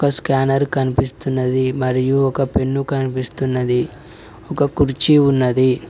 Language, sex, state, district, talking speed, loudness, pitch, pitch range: Telugu, male, Telangana, Mahabubabad, 100 wpm, -18 LUFS, 135 Hz, 130-140 Hz